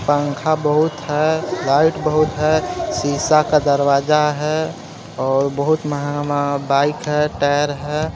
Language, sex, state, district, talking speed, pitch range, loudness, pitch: Hindi, male, Jharkhand, Garhwa, 125 wpm, 145-155 Hz, -18 LUFS, 150 Hz